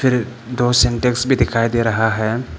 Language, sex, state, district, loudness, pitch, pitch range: Hindi, male, Arunachal Pradesh, Papum Pare, -17 LUFS, 120 Hz, 115-125 Hz